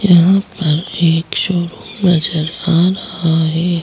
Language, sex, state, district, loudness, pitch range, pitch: Hindi, female, Chhattisgarh, Jashpur, -15 LUFS, 165-185 Hz, 170 Hz